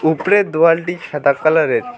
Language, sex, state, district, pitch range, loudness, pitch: Bengali, male, West Bengal, Alipurduar, 160-185 Hz, -15 LUFS, 165 Hz